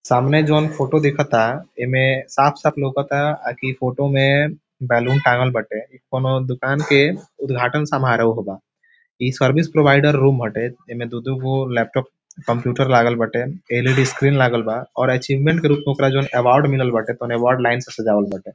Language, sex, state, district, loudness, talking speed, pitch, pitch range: Bhojpuri, male, Bihar, Saran, -18 LUFS, 175 wpm, 130 Hz, 120-140 Hz